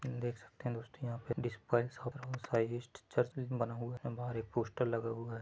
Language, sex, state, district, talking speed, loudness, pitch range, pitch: Hindi, male, Chhattisgarh, Bilaspur, 200 wpm, -39 LUFS, 115-125 Hz, 120 Hz